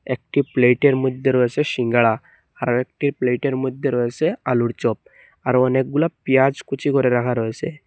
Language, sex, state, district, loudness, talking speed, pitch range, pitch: Bengali, male, Assam, Hailakandi, -20 LUFS, 145 wpm, 125-140 Hz, 130 Hz